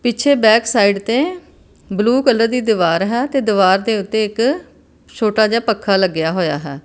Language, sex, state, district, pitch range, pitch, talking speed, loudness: Punjabi, female, Karnataka, Bangalore, 195-240 Hz, 220 Hz, 165 wpm, -15 LUFS